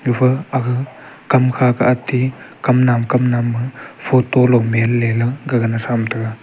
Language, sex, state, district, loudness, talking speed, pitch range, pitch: Wancho, male, Arunachal Pradesh, Longding, -16 LUFS, 175 wpm, 120-130 Hz, 125 Hz